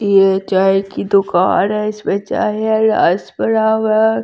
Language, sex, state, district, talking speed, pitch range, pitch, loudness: Hindi, female, Delhi, New Delhi, 155 wpm, 195-220 Hz, 205 Hz, -15 LUFS